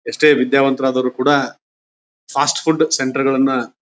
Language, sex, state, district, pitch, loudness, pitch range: Kannada, male, Karnataka, Bijapur, 135 Hz, -16 LUFS, 125-135 Hz